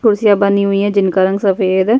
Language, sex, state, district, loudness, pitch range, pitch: Hindi, female, Uttarakhand, Tehri Garhwal, -13 LUFS, 190-205 Hz, 200 Hz